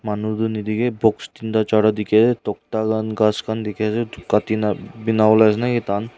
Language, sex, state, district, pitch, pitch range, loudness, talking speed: Nagamese, male, Nagaland, Kohima, 110 Hz, 105-110 Hz, -19 LUFS, 195 wpm